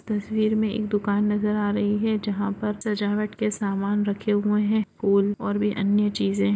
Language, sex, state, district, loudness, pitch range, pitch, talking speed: Hindi, female, Maharashtra, Aurangabad, -24 LUFS, 205-210 Hz, 210 Hz, 200 wpm